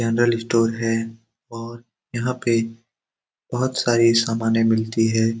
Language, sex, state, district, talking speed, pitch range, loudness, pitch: Hindi, male, Bihar, Saran, 135 wpm, 115-120 Hz, -20 LUFS, 115 Hz